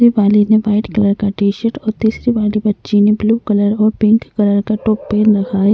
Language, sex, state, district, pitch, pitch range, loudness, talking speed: Hindi, female, Uttarakhand, Tehri Garhwal, 210 Hz, 205-220 Hz, -14 LUFS, 220 wpm